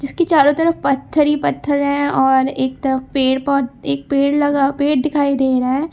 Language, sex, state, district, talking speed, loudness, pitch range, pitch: Hindi, female, Uttar Pradesh, Lucknow, 200 wpm, -16 LUFS, 265-290 Hz, 280 Hz